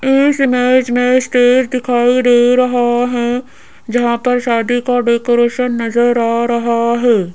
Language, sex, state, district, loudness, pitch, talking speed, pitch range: Hindi, female, Rajasthan, Jaipur, -13 LUFS, 245 Hz, 140 wpm, 235-250 Hz